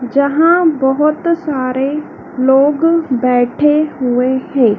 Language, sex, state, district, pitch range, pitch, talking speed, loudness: Hindi, female, Madhya Pradesh, Dhar, 255-305 Hz, 280 Hz, 90 wpm, -13 LUFS